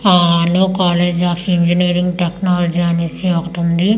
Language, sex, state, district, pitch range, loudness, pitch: Telugu, female, Andhra Pradesh, Manyam, 170-180 Hz, -15 LUFS, 175 Hz